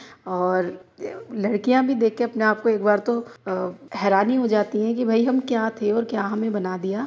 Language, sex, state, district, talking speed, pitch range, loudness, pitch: Hindi, female, Uttar Pradesh, Hamirpur, 210 wpm, 200-235 Hz, -22 LUFS, 215 Hz